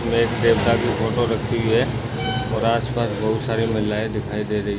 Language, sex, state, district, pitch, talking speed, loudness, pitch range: Hindi, male, Chhattisgarh, Bastar, 115 Hz, 215 wpm, -21 LUFS, 110-115 Hz